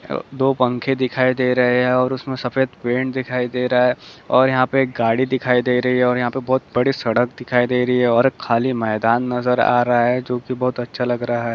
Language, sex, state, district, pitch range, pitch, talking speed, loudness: Hindi, male, Chhattisgarh, Bilaspur, 120-130 Hz, 125 Hz, 250 wpm, -18 LUFS